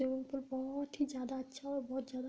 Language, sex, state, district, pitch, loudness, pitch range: Hindi, female, Uttar Pradesh, Budaun, 265 Hz, -41 LUFS, 260-275 Hz